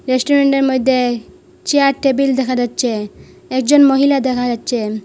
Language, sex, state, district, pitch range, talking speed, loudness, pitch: Bengali, female, Assam, Hailakandi, 245-275 Hz, 120 wpm, -15 LUFS, 260 Hz